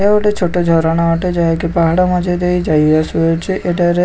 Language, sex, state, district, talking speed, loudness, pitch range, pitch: Odia, male, Odisha, Khordha, 205 wpm, -14 LUFS, 165-180 Hz, 175 Hz